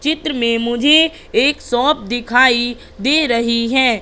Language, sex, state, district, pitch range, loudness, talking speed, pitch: Hindi, female, Madhya Pradesh, Katni, 235-295 Hz, -15 LUFS, 135 wpm, 245 Hz